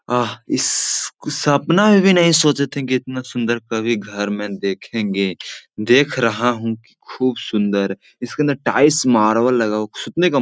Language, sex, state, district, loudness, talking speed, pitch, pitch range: Hindi, male, Bihar, Jahanabad, -18 LUFS, 180 wpm, 120 Hz, 105-140 Hz